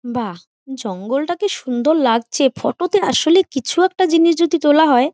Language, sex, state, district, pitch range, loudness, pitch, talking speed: Bengali, female, West Bengal, Jhargram, 245-340 Hz, -16 LUFS, 290 Hz, 150 wpm